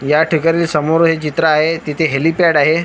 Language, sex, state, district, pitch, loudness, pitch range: Marathi, female, Maharashtra, Washim, 160 Hz, -14 LUFS, 150-165 Hz